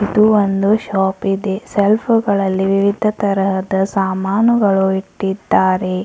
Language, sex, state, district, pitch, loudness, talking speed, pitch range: Kannada, female, Karnataka, Bidar, 195 Hz, -16 LUFS, 100 wpm, 190-205 Hz